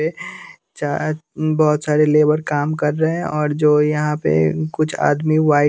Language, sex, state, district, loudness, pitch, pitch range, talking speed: Hindi, male, Bihar, West Champaran, -18 LUFS, 150 Hz, 150-155 Hz, 180 wpm